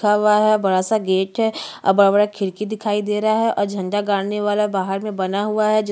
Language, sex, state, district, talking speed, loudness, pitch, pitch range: Hindi, female, Chhattisgarh, Jashpur, 245 wpm, -19 LUFS, 210 Hz, 195-215 Hz